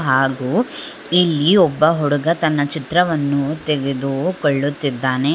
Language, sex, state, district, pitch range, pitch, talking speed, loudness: Kannada, female, Karnataka, Bangalore, 135-160 Hz, 145 Hz, 80 wpm, -18 LUFS